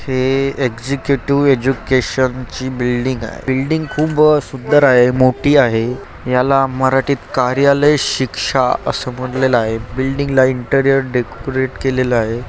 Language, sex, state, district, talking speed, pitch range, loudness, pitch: Marathi, male, Maharashtra, Chandrapur, 120 wpm, 125-135 Hz, -15 LUFS, 130 Hz